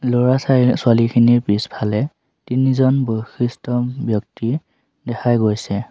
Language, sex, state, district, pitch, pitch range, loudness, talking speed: Assamese, male, Assam, Sonitpur, 120 Hz, 115-130 Hz, -18 LUFS, 90 wpm